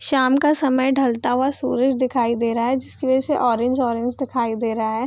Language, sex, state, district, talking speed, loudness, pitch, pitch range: Hindi, female, Bihar, Gopalganj, 225 wpm, -20 LUFS, 255 Hz, 235-265 Hz